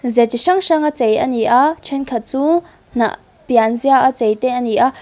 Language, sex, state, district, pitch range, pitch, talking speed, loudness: Mizo, female, Mizoram, Aizawl, 235-290 Hz, 255 Hz, 215 wpm, -16 LUFS